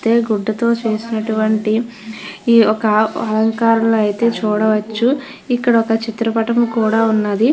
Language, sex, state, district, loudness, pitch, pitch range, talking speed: Telugu, female, Andhra Pradesh, Krishna, -16 LUFS, 225 Hz, 215-230 Hz, 105 wpm